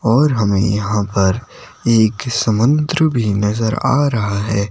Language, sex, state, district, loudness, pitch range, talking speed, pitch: Hindi, male, Himachal Pradesh, Shimla, -16 LUFS, 105-130 Hz, 140 wpm, 110 Hz